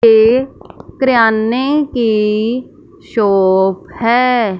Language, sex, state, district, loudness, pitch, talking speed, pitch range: Hindi, female, Punjab, Fazilka, -13 LUFS, 230 Hz, 65 wpm, 215-255 Hz